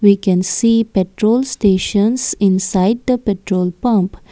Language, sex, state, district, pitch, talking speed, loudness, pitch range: English, female, Assam, Kamrup Metropolitan, 200 Hz, 125 wpm, -15 LUFS, 190-230 Hz